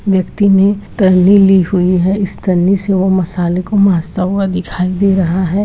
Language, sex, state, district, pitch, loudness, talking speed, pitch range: Hindi, female, Uttarakhand, Uttarkashi, 190 Hz, -12 LUFS, 180 wpm, 185-195 Hz